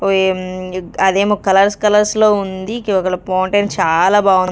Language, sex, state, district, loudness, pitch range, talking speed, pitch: Telugu, female, Andhra Pradesh, Sri Satya Sai, -15 LUFS, 185-205 Hz, 95 wpm, 195 Hz